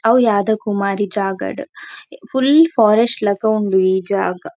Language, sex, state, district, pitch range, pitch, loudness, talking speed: Tulu, female, Karnataka, Dakshina Kannada, 200-275 Hz, 220 Hz, -16 LUFS, 115 wpm